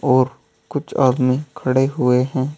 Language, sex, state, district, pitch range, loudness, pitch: Hindi, male, Uttar Pradesh, Saharanpur, 125-135 Hz, -19 LUFS, 130 Hz